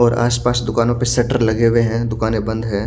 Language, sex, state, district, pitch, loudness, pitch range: Hindi, male, Haryana, Charkhi Dadri, 115 Hz, -17 LUFS, 110-120 Hz